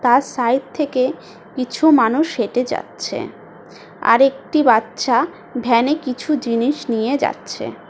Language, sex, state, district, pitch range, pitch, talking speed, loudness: Bengali, female, West Bengal, Jhargram, 240-285 Hz, 255 Hz, 120 wpm, -18 LUFS